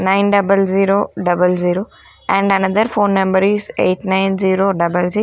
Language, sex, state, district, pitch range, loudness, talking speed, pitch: English, female, Punjab, Kapurthala, 185-200 Hz, -15 LUFS, 170 wpm, 195 Hz